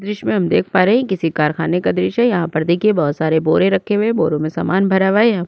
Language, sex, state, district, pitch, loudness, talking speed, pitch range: Hindi, female, Chhattisgarh, Sukma, 185 Hz, -16 LUFS, 305 wpm, 160-205 Hz